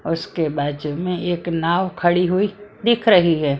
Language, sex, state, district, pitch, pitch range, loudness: Hindi, female, Maharashtra, Mumbai Suburban, 175 Hz, 160-185 Hz, -19 LUFS